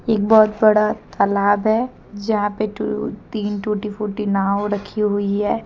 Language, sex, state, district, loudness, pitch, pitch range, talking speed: Hindi, female, Jharkhand, Deoghar, -19 LUFS, 210 Hz, 205-215 Hz, 160 wpm